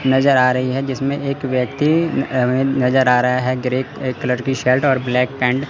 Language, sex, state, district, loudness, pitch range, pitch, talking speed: Hindi, male, Chandigarh, Chandigarh, -17 LUFS, 125-135 Hz, 130 Hz, 210 wpm